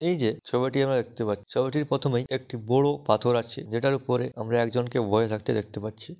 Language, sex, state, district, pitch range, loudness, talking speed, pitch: Bengali, male, West Bengal, Dakshin Dinajpur, 110-135 Hz, -26 LUFS, 195 wpm, 120 Hz